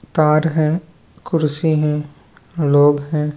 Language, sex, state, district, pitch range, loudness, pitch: Hindi, male, Chhattisgarh, Raigarh, 145-155 Hz, -17 LUFS, 150 Hz